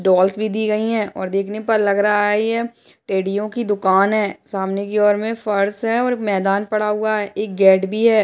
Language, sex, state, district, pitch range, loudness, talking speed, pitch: Hindi, female, Uttarakhand, Uttarkashi, 195-215 Hz, -18 LUFS, 225 wpm, 210 Hz